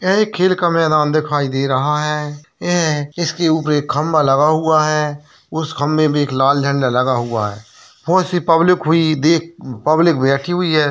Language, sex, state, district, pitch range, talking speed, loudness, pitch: Hindi, male, Bihar, Jahanabad, 145-165 Hz, 190 wpm, -16 LUFS, 155 Hz